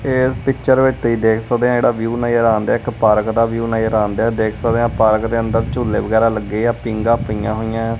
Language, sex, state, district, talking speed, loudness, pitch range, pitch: Punjabi, male, Punjab, Kapurthala, 235 wpm, -16 LUFS, 110-120 Hz, 115 Hz